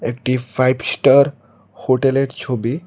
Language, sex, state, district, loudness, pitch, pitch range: Bengali, male, Tripura, West Tripura, -17 LUFS, 130 Hz, 120-135 Hz